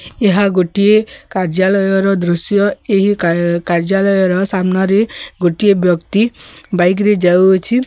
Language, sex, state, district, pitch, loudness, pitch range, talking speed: Odia, female, Odisha, Sambalpur, 195 Hz, -14 LUFS, 180-205 Hz, 100 wpm